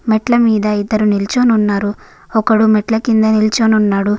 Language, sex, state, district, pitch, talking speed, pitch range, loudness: Telugu, female, Andhra Pradesh, Guntur, 215 Hz, 145 wpm, 210-220 Hz, -13 LUFS